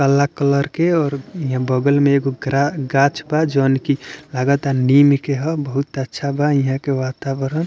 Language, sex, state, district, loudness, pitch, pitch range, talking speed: Bhojpuri, male, Bihar, Muzaffarpur, -18 LUFS, 140 Hz, 135-145 Hz, 190 wpm